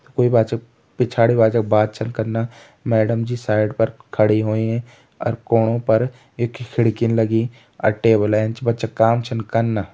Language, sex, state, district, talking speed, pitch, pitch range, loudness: Hindi, male, Uttarakhand, Tehri Garhwal, 155 wpm, 115 Hz, 110-120 Hz, -19 LUFS